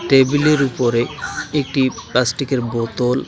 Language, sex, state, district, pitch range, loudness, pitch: Bengali, male, West Bengal, Alipurduar, 120-140 Hz, -18 LUFS, 130 Hz